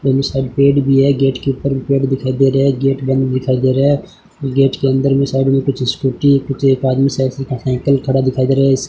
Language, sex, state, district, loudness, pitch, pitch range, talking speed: Hindi, male, Rajasthan, Bikaner, -15 LUFS, 135 Hz, 130-135 Hz, 250 wpm